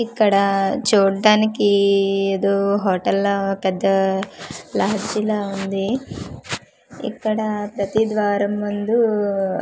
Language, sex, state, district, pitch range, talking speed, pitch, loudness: Telugu, female, Andhra Pradesh, Manyam, 195-215 Hz, 85 wpm, 200 Hz, -19 LUFS